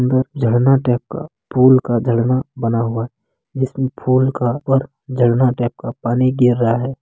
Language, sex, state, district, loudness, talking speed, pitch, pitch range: Hindi, male, Bihar, Kishanganj, -17 LUFS, 180 wpm, 130 Hz, 120-130 Hz